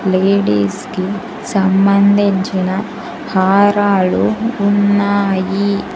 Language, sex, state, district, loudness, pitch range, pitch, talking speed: Telugu, female, Andhra Pradesh, Sri Satya Sai, -14 LUFS, 190-200 Hz, 200 Hz, 50 wpm